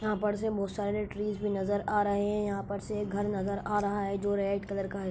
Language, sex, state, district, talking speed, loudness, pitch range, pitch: Hindi, female, Bihar, Sitamarhi, 295 wpm, -32 LUFS, 200-210 Hz, 205 Hz